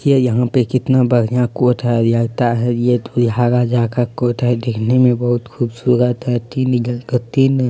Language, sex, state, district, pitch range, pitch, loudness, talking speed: Hindi, male, Bihar, Kishanganj, 120-125 Hz, 120 Hz, -16 LUFS, 205 wpm